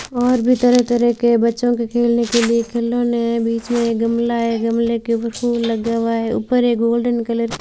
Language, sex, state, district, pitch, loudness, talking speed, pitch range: Hindi, female, Rajasthan, Bikaner, 235 Hz, -17 LUFS, 220 wpm, 230-240 Hz